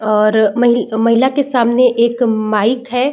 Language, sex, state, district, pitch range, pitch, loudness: Hindi, female, Bihar, Saran, 220-250 Hz, 235 Hz, -13 LUFS